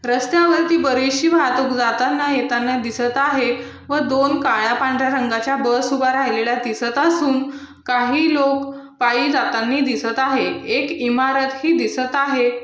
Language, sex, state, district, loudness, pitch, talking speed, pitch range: Marathi, female, Maharashtra, Aurangabad, -18 LUFS, 265 Hz, 130 wpm, 245-280 Hz